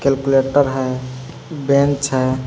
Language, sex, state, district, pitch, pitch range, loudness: Hindi, male, Jharkhand, Palamu, 135 Hz, 130-140 Hz, -17 LUFS